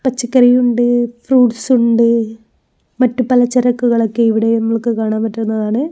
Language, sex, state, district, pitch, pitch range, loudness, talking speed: Malayalam, female, Kerala, Kozhikode, 240 Hz, 225-250 Hz, -14 LUFS, 110 wpm